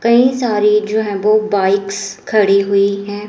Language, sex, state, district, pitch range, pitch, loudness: Hindi, female, Himachal Pradesh, Shimla, 200-215 Hz, 210 Hz, -14 LUFS